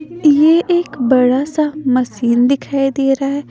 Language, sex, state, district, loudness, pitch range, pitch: Hindi, female, Punjab, Pathankot, -14 LUFS, 260-305 Hz, 275 Hz